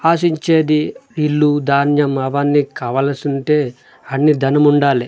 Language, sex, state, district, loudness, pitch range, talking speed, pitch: Telugu, male, Andhra Pradesh, Manyam, -16 LUFS, 140-150 Hz, 95 wpm, 145 Hz